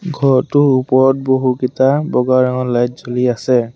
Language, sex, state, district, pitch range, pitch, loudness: Assamese, male, Assam, Sonitpur, 125-135 Hz, 130 Hz, -14 LUFS